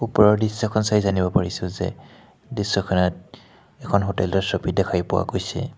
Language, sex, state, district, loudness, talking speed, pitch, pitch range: Assamese, male, Assam, Hailakandi, -22 LUFS, 145 wpm, 100 Hz, 95-105 Hz